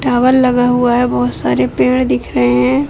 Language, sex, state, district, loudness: Hindi, female, Uttar Pradesh, Deoria, -13 LUFS